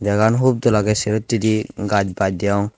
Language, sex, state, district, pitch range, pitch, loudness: Chakma, male, Tripura, Dhalai, 100-110 Hz, 105 Hz, -18 LUFS